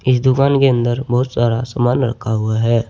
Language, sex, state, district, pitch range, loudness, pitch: Hindi, male, Uttar Pradesh, Saharanpur, 115-130 Hz, -16 LUFS, 120 Hz